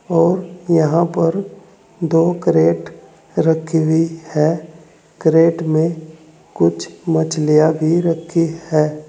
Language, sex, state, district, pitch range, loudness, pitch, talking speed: Hindi, male, Uttar Pradesh, Saharanpur, 155-165 Hz, -17 LUFS, 160 Hz, 100 wpm